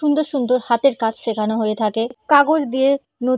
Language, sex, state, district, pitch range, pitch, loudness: Bengali, female, West Bengal, Purulia, 225-280 Hz, 255 Hz, -18 LUFS